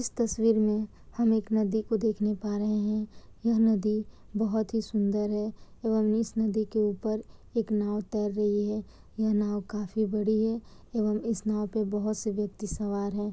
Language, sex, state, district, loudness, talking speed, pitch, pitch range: Hindi, female, Bihar, Kishanganj, -29 LUFS, 185 wpm, 215 Hz, 210-220 Hz